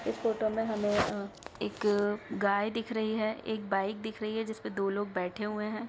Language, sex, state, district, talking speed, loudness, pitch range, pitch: Hindi, female, Bihar, Darbhanga, 215 wpm, -32 LUFS, 205-220 Hz, 215 Hz